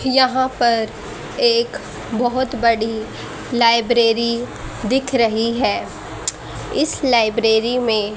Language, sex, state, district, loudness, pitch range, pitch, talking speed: Hindi, female, Haryana, Rohtak, -18 LUFS, 225-255 Hz, 235 Hz, 90 wpm